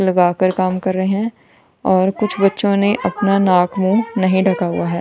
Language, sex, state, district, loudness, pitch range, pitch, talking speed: Hindi, female, Punjab, Kapurthala, -16 LUFS, 185-200 Hz, 190 Hz, 190 wpm